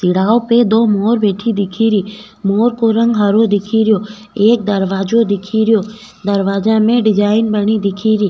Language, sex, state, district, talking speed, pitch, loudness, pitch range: Rajasthani, female, Rajasthan, Nagaur, 165 wpm, 215 Hz, -14 LUFS, 205-225 Hz